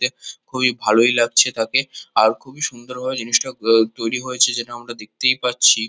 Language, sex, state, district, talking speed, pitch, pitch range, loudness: Bengali, male, West Bengal, Kolkata, 185 wpm, 120 Hz, 115-130 Hz, -18 LUFS